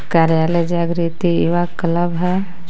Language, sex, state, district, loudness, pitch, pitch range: Hindi, female, Jharkhand, Garhwa, -17 LUFS, 170 Hz, 170-175 Hz